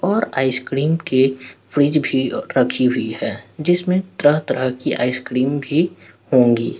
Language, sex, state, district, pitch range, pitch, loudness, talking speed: Hindi, male, Bihar, Patna, 125-155 Hz, 130 Hz, -18 LUFS, 130 wpm